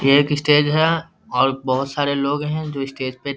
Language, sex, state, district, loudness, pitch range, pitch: Hindi, male, Bihar, Darbhanga, -19 LUFS, 135-150 Hz, 145 Hz